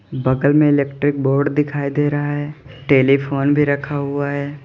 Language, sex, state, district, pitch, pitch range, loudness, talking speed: Hindi, male, Uttar Pradesh, Lalitpur, 140 Hz, 140-145 Hz, -17 LUFS, 170 wpm